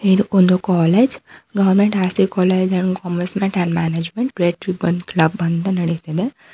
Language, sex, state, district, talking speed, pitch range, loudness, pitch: Kannada, female, Karnataka, Bangalore, 145 wpm, 175-195 Hz, -18 LUFS, 185 Hz